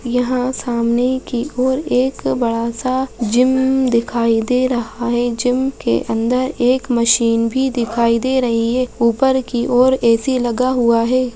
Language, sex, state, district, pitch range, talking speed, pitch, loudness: Hindi, female, Bihar, Madhepura, 235-255 Hz, 150 wpm, 245 Hz, -16 LUFS